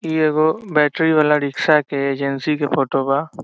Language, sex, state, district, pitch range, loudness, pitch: Bhojpuri, male, Bihar, Saran, 140-155 Hz, -18 LUFS, 150 Hz